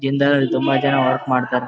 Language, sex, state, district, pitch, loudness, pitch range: Kannada, male, Karnataka, Bellary, 135 Hz, -18 LUFS, 125-140 Hz